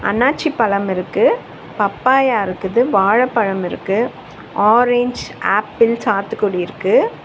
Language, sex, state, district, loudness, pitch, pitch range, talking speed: Tamil, female, Tamil Nadu, Chennai, -16 LUFS, 230 Hz, 200-255 Hz, 90 wpm